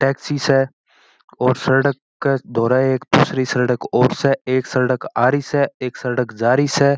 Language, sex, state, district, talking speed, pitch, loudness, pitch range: Marwari, male, Rajasthan, Churu, 170 wpm, 130 Hz, -18 LUFS, 125-140 Hz